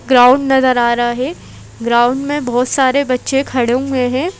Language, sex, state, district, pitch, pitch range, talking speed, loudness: Hindi, female, Madhya Pradesh, Bhopal, 255 Hz, 245-270 Hz, 180 wpm, -14 LUFS